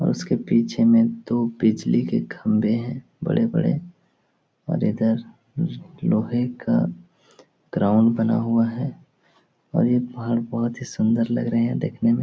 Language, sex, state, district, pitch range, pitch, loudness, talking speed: Hindi, male, Bihar, Jahanabad, 115-130 Hz, 115 Hz, -22 LUFS, 145 wpm